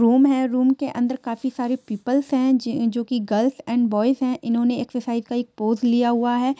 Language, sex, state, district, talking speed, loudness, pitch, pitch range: Hindi, female, Jharkhand, Sahebganj, 210 wpm, -21 LUFS, 245 Hz, 235-260 Hz